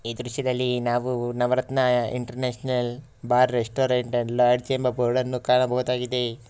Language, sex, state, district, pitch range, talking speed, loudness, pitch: Kannada, male, Karnataka, Shimoga, 120-125 Hz, 120 wpm, -24 LUFS, 125 Hz